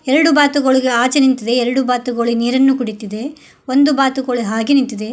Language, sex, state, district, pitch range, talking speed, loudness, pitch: Kannada, female, Karnataka, Koppal, 235-275 Hz, 140 wpm, -15 LUFS, 255 Hz